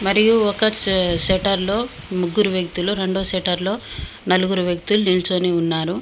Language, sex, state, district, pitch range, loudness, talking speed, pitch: Telugu, female, Telangana, Mahabubabad, 180-200 Hz, -17 LUFS, 140 wpm, 190 Hz